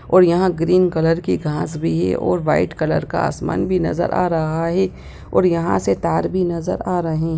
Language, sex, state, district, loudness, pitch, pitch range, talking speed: Hindi, female, Bihar, Sitamarhi, -19 LUFS, 165 Hz, 150-180 Hz, 210 wpm